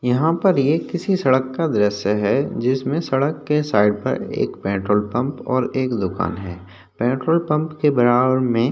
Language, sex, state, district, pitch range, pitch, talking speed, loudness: Hindi, male, Maharashtra, Chandrapur, 105-150 Hz, 130 Hz, 180 wpm, -20 LUFS